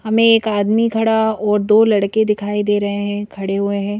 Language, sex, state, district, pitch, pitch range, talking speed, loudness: Hindi, female, Madhya Pradesh, Bhopal, 210 Hz, 205-220 Hz, 210 wpm, -16 LUFS